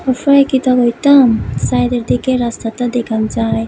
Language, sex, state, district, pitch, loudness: Bengali, female, Tripura, West Tripura, 240 Hz, -13 LUFS